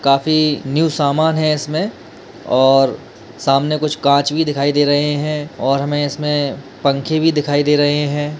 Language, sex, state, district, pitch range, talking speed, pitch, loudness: Hindi, male, Bihar, Samastipur, 140-150 Hz, 170 wpm, 145 Hz, -16 LUFS